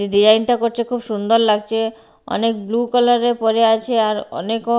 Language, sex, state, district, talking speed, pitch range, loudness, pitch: Bengali, female, Bihar, Katihar, 190 wpm, 220-235 Hz, -17 LUFS, 225 Hz